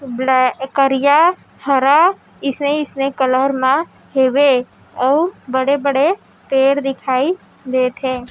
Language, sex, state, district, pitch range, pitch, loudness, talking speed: Chhattisgarhi, female, Chhattisgarh, Raigarh, 260-285 Hz, 270 Hz, -16 LUFS, 85 wpm